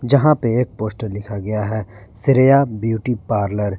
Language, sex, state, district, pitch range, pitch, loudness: Hindi, male, Jharkhand, Garhwa, 105-125 Hz, 110 Hz, -18 LUFS